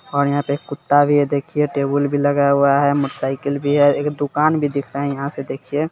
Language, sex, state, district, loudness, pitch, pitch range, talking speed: Hindi, male, Bihar, Sitamarhi, -18 LUFS, 145 Hz, 140-145 Hz, 255 wpm